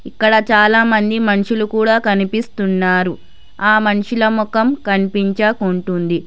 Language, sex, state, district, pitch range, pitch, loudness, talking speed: Telugu, female, Telangana, Hyderabad, 195-220 Hz, 210 Hz, -15 LUFS, 85 wpm